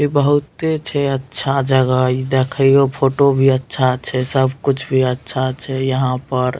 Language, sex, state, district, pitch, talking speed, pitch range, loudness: Maithili, male, Bihar, Madhepura, 135 Hz, 165 wpm, 130-140 Hz, -17 LUFS